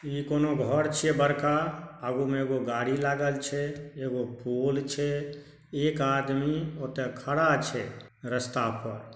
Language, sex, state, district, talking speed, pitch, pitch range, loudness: Maithili, male, Bihar, Saharsa, 145 wpm, 140 Hz, 125-145 Hz, -29 LUFS